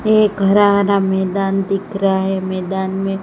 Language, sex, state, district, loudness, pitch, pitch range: Hindi, female, Gujarat, Gandhinagar, -16 LUFS, 195 Hz, 190-200 Hz